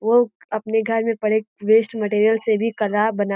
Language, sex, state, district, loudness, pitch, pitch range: Hindi, female, Uttar Pradesh, Gorakhpur, -20 LUFS, 220 Hz, 210-225 Hz